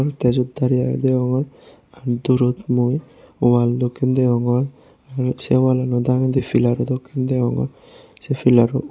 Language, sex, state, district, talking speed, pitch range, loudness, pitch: Chakma, male, Tripura, West Tripura, 155 wpm, 125-130 Hz, -19 LUFS, 125 Hz